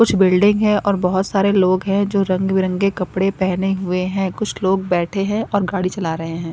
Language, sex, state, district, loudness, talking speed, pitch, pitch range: Hindi, female, Punjab, Kapurthala, -18 LUFS, 220 wpm, 190 Hz, 185-200 Hz